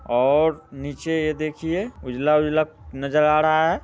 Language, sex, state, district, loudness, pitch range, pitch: Hindi, male, Bihar, Muzaffarpur, -21 LUFS, 140-160 Hz, 150 Hz